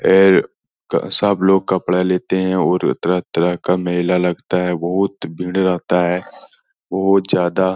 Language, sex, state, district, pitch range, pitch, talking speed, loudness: Hindi, male, Bihar, Lakhisarai, 90-95 Hz, 90 Hz, 140 wpm, -17 LUFS